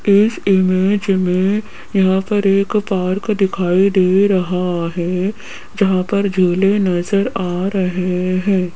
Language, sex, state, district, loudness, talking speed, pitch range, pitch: Hindi, female, Rajasthan, Jaipur, -16 LUFS, 125 wpm, 180-200 Hz, 190 Hz